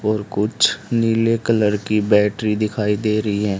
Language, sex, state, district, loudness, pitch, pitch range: Hindi, male, Haryana, Charkhi Dadri, -19 LUFS, 105 Hz, 105-110 Hz